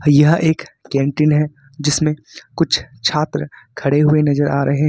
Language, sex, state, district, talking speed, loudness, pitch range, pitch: Hindi, male, Jharkhand, Ranchi, 160 wpm, -17 LUFS, 145-150 Hz, 150 Hz